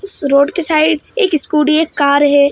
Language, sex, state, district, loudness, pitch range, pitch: Hindi, female, Maharashtra, Mumbai Suburban, -13 LUFS, 285-325 Hz, 305 Hz